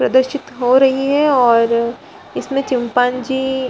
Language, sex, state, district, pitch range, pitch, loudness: Hindi, female, Bihar, Gaya, 245-270 Hz, 260 Hz, -15 LUFS